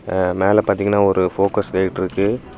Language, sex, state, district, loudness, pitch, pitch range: Tamil, male, Tamil Nadu, Kanyakumari, -18 LUFS, 100 Hz, 95-100 Hz